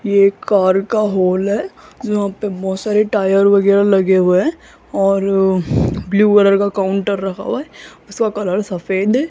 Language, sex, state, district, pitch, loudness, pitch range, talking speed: Hindi, female, Rajasthan, Jaipur, 200 Hz, -15 LUFS, 190-210 Hz, 175 wpm